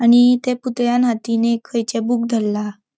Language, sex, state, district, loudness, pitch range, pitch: Konkani, female, Goa, North and South Goa, -18 LUFS, 230-245 Hz, 235 Hz